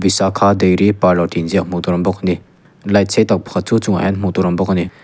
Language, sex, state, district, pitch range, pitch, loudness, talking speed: Mizo, male, Mizoram, Aizawl, 90-100 Hz, 95 Hz, -15 LUFS, 320 wpm